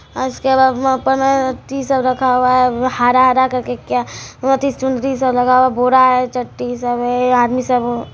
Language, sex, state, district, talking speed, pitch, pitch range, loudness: Hindi, female, Bihar, Araria, 200 wpm, 255 Hz, 245-260 Hz, -15 LUFS